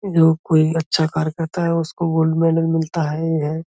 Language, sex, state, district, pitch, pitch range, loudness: Hindi, male, Uttar Pradesh, Budaun, 160 Hz, 160-165 Hz, -19 LUFS